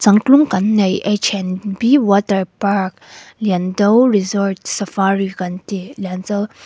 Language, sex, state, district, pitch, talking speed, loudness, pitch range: Mizo, female, Mizoram, Aizawl, 200 Hz, 115 wpm, -16 LUFS, 190-205 Hz